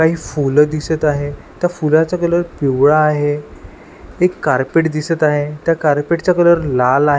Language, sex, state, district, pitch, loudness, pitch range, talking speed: Marathi, male, Maharashtra, Washim, 155 Hz, -15 LUFS, 145-165 Hz, 165 wpm